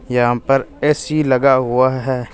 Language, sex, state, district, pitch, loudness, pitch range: Hindi, male, Punjab, Fazilka, 130 Hz, -16 LUFS, 125-140 Hz